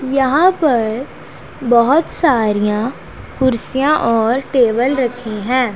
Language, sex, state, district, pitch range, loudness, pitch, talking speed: Hindi, female, Punjab, Pathankot, 230-275 Hz, -15 LUFS, 250 Hz, 95 wpm